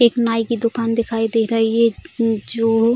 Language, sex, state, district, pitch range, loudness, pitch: Hindi, female, Bihar, Jamui, 225-230 Hz, -18 LUFS, 230 Hz